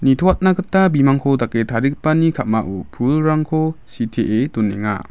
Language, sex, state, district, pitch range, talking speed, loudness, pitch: Garo, male, Meghalaya, West Garo Hills, 115-155 Hz, 105 wpm, -17 LUFS, 135 Hz